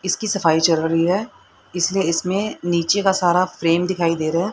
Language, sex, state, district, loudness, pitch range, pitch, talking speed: Hindi, female, Haryana, Rohtak, -19 LUFS, 165-190 Hz, 175 Hz, 200 wpm